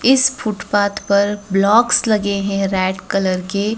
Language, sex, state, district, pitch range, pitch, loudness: Hindi, female, Madhya Pradesh, Dhar, 195-215 Hz, 200 Hz, -17 LUFS